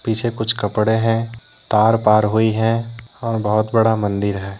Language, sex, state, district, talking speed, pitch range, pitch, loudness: Hindi, male, Jharkhand, Deoghar, 170 wpm, 105-115 Hz, 110 Hz, -18 LUFS